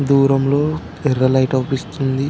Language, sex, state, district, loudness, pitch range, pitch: Telugu, male, Telangana, Karimnagar, -17 LUFS, 130-140 Hz, 135 Hz